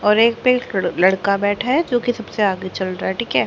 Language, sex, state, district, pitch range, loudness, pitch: Hindi, female, Haryana, Charkhi Dadri, 190-245 Hz, -18 LUFS, 210 Hz